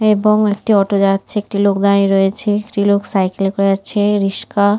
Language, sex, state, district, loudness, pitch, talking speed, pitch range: Bengali, female, West Bengal, Kolkata, -15 LUFS, 200 Hz, 190 wpm, 195-205 Hz